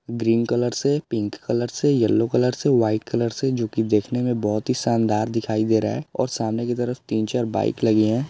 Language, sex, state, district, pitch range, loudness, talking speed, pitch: Hindi, male, Bihar, Gopalganj, 110-125 Hz, -22 LUFS, 215 wpm, 115 Hz